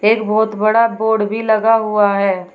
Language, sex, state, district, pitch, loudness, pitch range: Hindi, female, Uttar Pradesh, Shamli, 215 Hz, -15 LUFS, 205-220 Hz